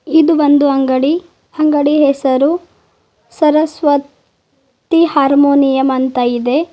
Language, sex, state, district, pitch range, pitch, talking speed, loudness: Kannada, female, Karnataka, Bidar, 270-310 Hz, 285 Hz, 90 wpm, -13 LUFS